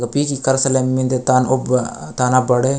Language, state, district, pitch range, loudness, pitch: Gondi, Chhattisgarh, Sukma, 125-135 Hz, -17 LUFS, 130 Hz